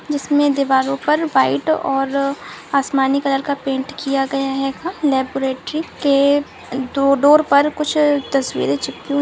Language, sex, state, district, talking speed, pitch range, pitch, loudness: Hindi, female, Bihar, Samastipur, 135 wpm, 270-290 Hz, 275 Hz, -18 LUFS